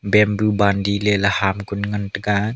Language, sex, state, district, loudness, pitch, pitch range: Wancho, male, Arunachal Pradesh, Longding, -19 LUFS, 100 Hz, 100-105 Hz